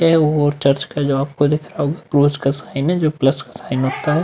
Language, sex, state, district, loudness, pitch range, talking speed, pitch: Hindi, male, Uttar Pradesh, Muzaffarnagar, -18 LUFS, 135-150 Hz, 270 wpm, 145 Hz